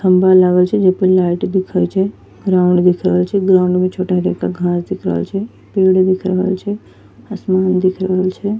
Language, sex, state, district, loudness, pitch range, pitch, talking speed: Angika, female, Bihar, Bhagalpur, -15 LUFS, 180-190 Hz, 185 Hz, 200 wpm